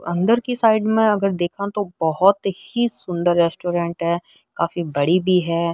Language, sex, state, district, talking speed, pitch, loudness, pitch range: Rajasthani, female, Rajasthan, Nagaur, 165 wpm, 180 Hz, -20 LUFS, 170-205 Hz